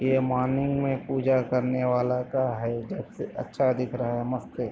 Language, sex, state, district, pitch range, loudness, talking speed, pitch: Hindi, male, Maharashtra, Dhule, 125-130 Hz, -27 LUFS, 205 wpm, 125 Hz